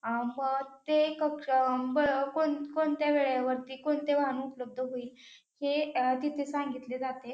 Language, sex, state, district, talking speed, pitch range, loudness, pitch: Marathi, female, Maharashtra, Pune, 115 wpm, 255-295 Hz, -31 LUFS, 270 Hz